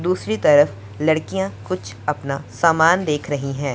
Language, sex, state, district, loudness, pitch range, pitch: Hindi, male, Punjab, Pathankot, -19 LUFS, 105-160 Hz, 145 Hz